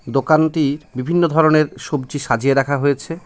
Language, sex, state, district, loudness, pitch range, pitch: Bengali, male, West Bengal, Cooch Behar, -17 LUFS, 135-155 Hz, 145 Hz